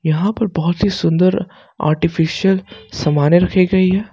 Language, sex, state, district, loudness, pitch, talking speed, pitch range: Hindi, male, Jharkhand, Ranchi, -16 LUFS, 180 Hz, 145 wpm, 165-195 Hz